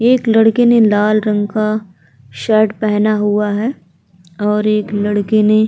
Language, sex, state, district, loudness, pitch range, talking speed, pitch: Hindi, female, Uttar Pradesh, Hamirpur, -14 LUFS, 205-215 Hz, 160 wpm, 215 Hz